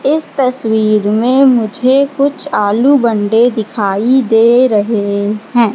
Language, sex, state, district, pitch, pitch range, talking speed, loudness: Hindi, female, Madhya Pradesh, Katni, 230 Hz, 215-260 Hz, 115 wpm, -12 LUFS